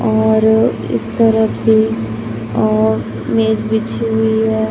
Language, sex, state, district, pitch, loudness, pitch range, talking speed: Hindi, male, Chhattisgarh, Raipur, 110 Hz, -15 LUFS, 110-115 Hz, 115 wpm